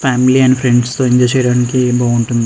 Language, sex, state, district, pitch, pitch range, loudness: Telugu, male, Andhra Pradesh, Srikakulam, 125 Hz, 120-130 Hz, -12 LUFS